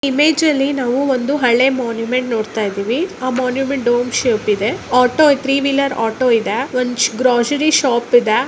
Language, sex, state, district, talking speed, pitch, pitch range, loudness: Kannada, female, Karnataka, Gulbarga, 150 wpm, 255 Hz, 240-275 Hz, -16 LUFS